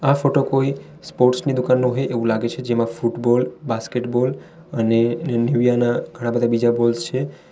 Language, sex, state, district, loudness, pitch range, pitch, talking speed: Gujarati, male, Gujarat, Valsad, -20 LUFS, 120-135 Hz, 125 Hz, 160 wpm